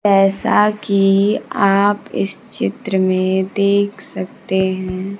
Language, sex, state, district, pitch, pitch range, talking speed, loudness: Hindi, female, Bihar, Kaimur, 195 Hz, 190-200 Hz, 105 wpm, -17 LUFS